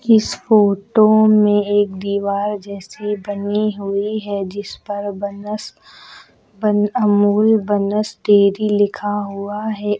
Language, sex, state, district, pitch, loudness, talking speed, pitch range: Hindi, female, Uttar Pradesh, Lucknow, 205 Hz, -17 LUFS, 110 wpm, 200-210 Hz